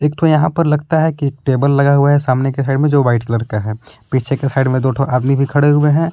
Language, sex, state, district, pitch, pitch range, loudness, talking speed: Hindi, male, Jharkhand, Palamu, 140 Hz, 130-150 Hz, -14 LUFS, 285 wpm